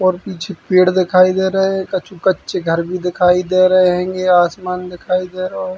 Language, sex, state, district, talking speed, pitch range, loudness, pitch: Bundeli, male, Uttar Pradesh, Hamirpur, 195 wpm, 180-185 Hz, -15 LUFS, 185 Hz